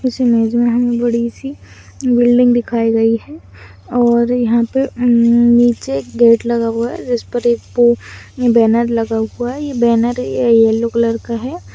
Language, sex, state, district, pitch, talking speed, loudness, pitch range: Hindi, female, Chhattisgarh, Kabirdham, 235 Hz, 175 wpm, -14 LUFS, 230-245 Hz